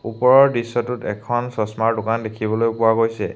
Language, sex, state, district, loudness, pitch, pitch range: Assamese, male, Assam, Hailakandi, -19 LUFS, 115 Hz, 110-120 Hz